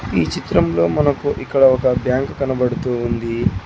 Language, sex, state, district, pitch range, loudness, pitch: Telugu, male, Telangana, Hyderabad, 110-135 Hz, -18 LUFS, 125 Hz